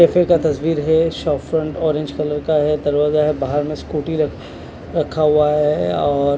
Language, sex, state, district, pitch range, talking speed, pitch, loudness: Hindi, male, Chandigarh, Chandigarh, 150-160 Hz, 190 wpm, 150 Hz, -18 LUFS